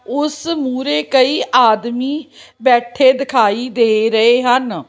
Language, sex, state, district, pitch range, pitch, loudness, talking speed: Punjabi, female, Chandigarh, Chandigarh, 230-270 Hz, 250 Hz, -14 LUFS, 110 wpm